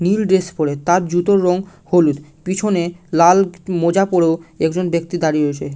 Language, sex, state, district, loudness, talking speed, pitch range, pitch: Bengali, male, West Bengal, Malda, -17 LUFS, 155 wpm, 160-185 Hz, 175 Hz